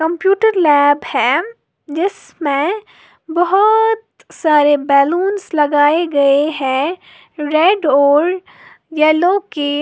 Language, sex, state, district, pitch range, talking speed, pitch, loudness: Hindi, female, Uttar Pradesh, Lalitpur, 290-375 Hz, 85 wpm, 320 Hz, -14 LUFS